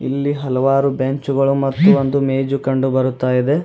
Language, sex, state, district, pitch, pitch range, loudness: Kannada, male, Karnataka, Bidar, 135 Hz, 130-140 Hz, -17 LUFS